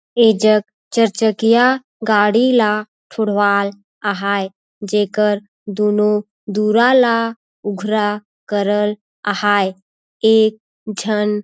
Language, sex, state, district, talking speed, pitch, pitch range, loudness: Surgujia, female, Chhattisgarh, Sarguja, 85 wpm, 210 Hz, 205-220 Hz, -16 LUFS